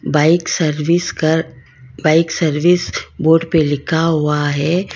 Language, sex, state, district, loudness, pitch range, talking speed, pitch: Hindi, female, Karnataka, Bangalore, -15 LUFS, 150-165 Hz, 120 wpm, 160 Hz